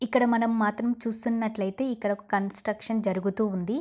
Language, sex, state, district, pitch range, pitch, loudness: Telugu, female, Andhra Pradesh, Guntur, 205-235 Hz, 220 Hz, -28 LUFS